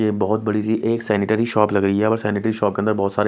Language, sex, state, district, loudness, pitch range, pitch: Hindi, male, Odisha, Nuapada, -20 LUFS, 105-110 Hz, 105 Hz